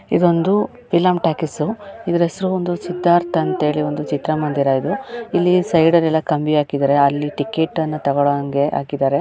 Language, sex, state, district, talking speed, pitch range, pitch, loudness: Kannada, male, Karnataka, Chamarajanagar, 145 wpm, 145-175 Hz, 160 Hz, -18 LUFS